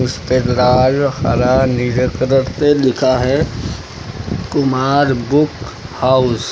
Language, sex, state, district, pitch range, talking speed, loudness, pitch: Hindi, male, Uttar Pradesh, Lucknow, 125-135 Hz, 110 wpm, -15 LUFS, 130 Hz